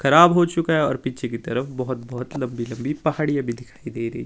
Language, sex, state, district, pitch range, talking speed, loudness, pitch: Hindi, male, Himachal Pradesh, Shimla, 120-150 Hz, 210 wpm, -22 LUFS, 130 Hz